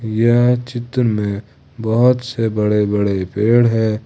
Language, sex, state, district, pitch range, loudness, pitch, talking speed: Hindi, male, Jharkhand, Ranchi, 105-120 Hz, -16 LUFS, 115 Hz, 135 wpm